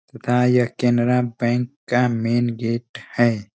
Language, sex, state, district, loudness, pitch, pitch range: Hindi, male, Uttar Pradesh, Ghazipur, -20 LUFS, 120 Hz, 115-125 Hz